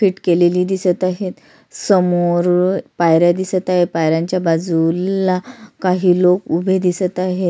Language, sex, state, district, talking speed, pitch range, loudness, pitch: Marathi, female, Maharashtra, Sindhudurg, 110 wpm, 175-185 Hz, -16 LUFS, 180 Hz